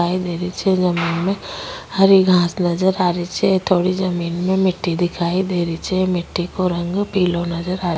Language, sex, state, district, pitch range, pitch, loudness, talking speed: Rajasthani, female, Rajasthan, Nagaur, 175-190 Hz, 180 Hz, -19 LUFS, 205 wpm